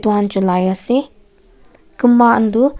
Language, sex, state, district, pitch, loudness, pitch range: Nagamese, female, Nagaland, Kohima, 225 Hz, -14 LUFS, 195-245 Hz